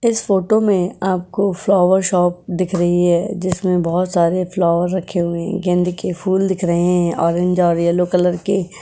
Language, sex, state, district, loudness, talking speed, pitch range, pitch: Hindi, female, Uttar Pradesh, Budaun, -17 LUFS, 175 wpm, 175-190 Hz, 180 Hz